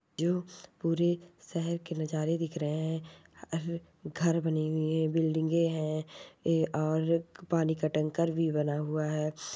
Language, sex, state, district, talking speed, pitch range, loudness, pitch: Hindi, female, Rajasthan, Churu, 145 wpm, 155-170 Hz, -31 LUFS, 160 Hz